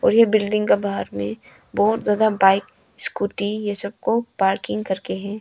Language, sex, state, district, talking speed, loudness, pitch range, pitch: Hindi, female, Arunachal Pradesh, Longding, 190 wpm, -20 LUFS, 195-215 Hz, 205 Hz